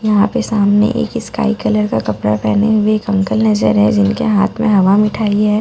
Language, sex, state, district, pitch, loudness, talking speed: Hindi, female, Bihar, Katihar, 200 Hz, -14 LUFS, 205 wpm